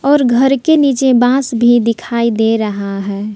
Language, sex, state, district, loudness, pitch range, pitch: Hindi, female, Jharkhand, Palamu, -13 LUFS, 220-265 Hz, 240 Hz